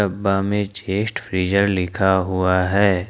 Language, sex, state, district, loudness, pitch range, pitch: Hindi, male, Jharkhand, Ranchi, -19 LUFS, 95-100 Hz, 95 Hz